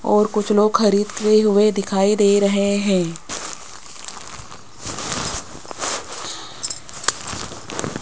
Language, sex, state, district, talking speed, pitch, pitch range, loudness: Hindi, female, Rajasthan, Jaipur, 65 wpm, 205 Hz, 200-210 Hz, -20 LUFS